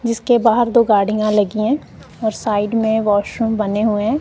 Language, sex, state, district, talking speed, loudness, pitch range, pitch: Hindi, female, Punjab, Kapurthala, 185 wpm, -17 LUFS, 210-230 Hz, 220 Hz